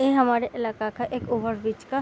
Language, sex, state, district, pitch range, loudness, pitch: Hindi, female, Bihar, East Champaran, 220-255 Hz, -26 LUFS, 235 Hz